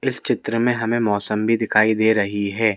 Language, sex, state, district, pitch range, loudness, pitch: Hindi, male, Madhya Pradesh, Bhopal, 105-115 Hz, -19 LUFS, 110 Hz